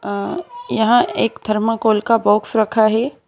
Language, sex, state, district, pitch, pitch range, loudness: Hindi, female, Madhya Pradesh, Bhopal, 225 Hz, 215-240 Hz, -17 LUFS